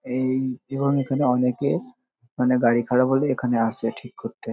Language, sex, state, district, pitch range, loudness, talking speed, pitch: Bengali, male, West Bengal, North 24 Parganas, 125-140 Hz, -23 LUFS, 160 wpm, 130 Hz